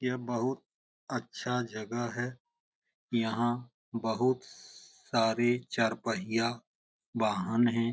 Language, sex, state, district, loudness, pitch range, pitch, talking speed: Hindi, male, Bihar, Jamui, -32 LUFS, 115-125 Hz, 120 Hz, 90 wpm